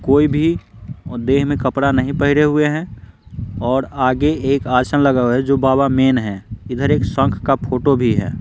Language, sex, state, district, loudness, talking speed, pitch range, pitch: Hindi, male, Bihar, Patna, -16 LUFS, 195 wpm, 125-140 Hz, 135 Hz